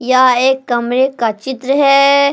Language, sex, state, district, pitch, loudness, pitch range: Hindi, female, Jharkhand, Palamu, 265 Hz, -13 LUFS, 250-275 Hz